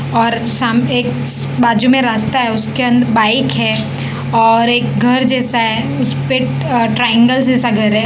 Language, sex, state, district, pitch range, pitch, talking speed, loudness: Hindi, female, Gujarat, Valsad, 210-245 Hz, 230 Hz, 170 wpm, -13 LUFS